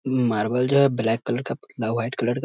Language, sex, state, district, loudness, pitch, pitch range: Hindi, male, Bihar, Muzaffarpur, -23 LUFS, 120 Hz, 115-130 Hz